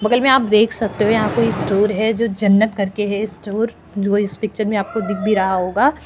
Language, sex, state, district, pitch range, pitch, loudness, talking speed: Hindi, female, Maharashtra, Chandrapur, 200-225 Hz, 215 Hz, -17 LUFS, 250 wpm